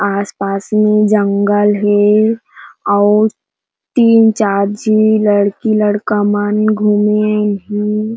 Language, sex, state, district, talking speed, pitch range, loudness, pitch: Chhattisgarhi, female, Chhattisgarh, Jashpur, 110 wpm, 205-215 Hz, -13 LUFS, 210 Hz